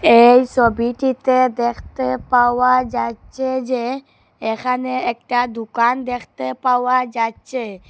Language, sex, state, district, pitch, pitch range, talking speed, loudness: Bengali, female, Assam, Hailakandi, 245 Hz, 230-255 Hz, 100 wpm, -18 LUFS